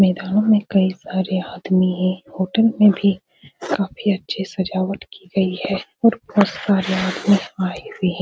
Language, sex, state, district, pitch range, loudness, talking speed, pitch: Hindi, female, Bihar, Supaul, 185-200 Hz, -19 LUFS, 160 wpm, 190 Hz